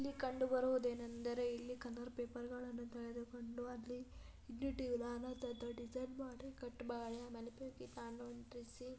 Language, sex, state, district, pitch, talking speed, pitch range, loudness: Kannada, female, Karnataka, Belgaum, 245 Hz, 120 wpm, 240-255 Hz, -46 LUFS